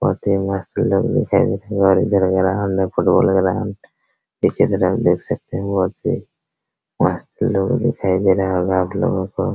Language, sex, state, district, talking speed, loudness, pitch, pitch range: Hindi, male, Bihar, Araria, 195 wpm, -18 LUFS, 95 Hz, 95-100 Hz